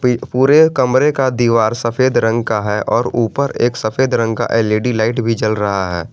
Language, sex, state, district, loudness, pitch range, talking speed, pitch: Hindi, male, Jharkhand, Garhwa, -15 LUFS, 110-125 Hz, 195 wpm, 115 Hz